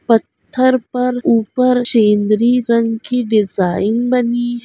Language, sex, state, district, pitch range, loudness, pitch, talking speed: Hindi, female, Bihar, Araria, 220-250 Hz, -15 LUFS, 235 Hz, 115 wpm